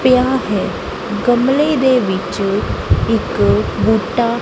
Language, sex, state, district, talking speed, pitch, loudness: Punjabi, female, Punjab, Kapurthala, 95 wpm, 205 Hz, -16 LUFS